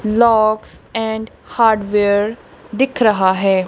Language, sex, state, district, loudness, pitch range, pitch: Hindi, female, Punjab, Kapurthala, -16 LUFS, 205-225 Hz, 215 Hz